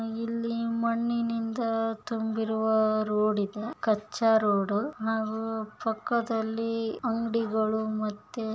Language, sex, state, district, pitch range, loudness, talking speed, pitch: Kannada, female, Karnataka, Bijapur, 215-230 Hz, -29 LUFS, 75 wpm, 225 Hz